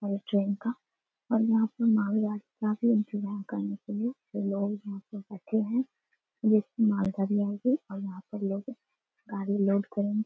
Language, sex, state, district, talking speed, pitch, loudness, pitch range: Hindi, female, Bihar, Darbhanga, 130 wpm, 210 Hz, -30 LUFS, 200-225 Hz